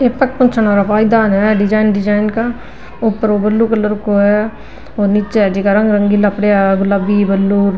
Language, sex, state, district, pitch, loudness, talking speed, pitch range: Marwari, female, Rajasthan, Nagaur, 210 Hz, -13 LUFS, 185 wpm, 200-220 Hz